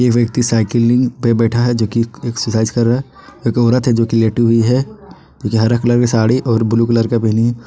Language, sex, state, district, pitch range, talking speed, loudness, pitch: Hindi, male, Jharkhand, Ranchi, 115-120 Hz, 245 wpm, -14 LUFS, 115 Hz